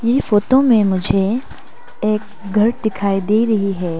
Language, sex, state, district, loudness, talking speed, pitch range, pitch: Hindi, female, Arunachal Pradesh, Papum Pare, -17 LUFS, 150 wpm, 195-225 Hz, 215 Hz